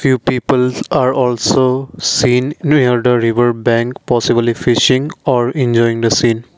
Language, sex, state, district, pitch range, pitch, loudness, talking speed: English, male, Assam, Kamrup Metropolitan, 120-130 Hz, 125 Hz, -14 LUFS, 130 wpm